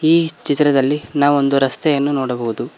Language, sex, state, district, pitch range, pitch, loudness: Kannada, male, Karnataka, Koppal, 135-150 Hz, 145 Hz, -16 LUFS